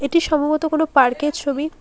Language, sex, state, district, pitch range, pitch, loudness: Bengali, female, West Bengal, Alipurduar, 280-315 Hz, 300 Hz, -18 LUFS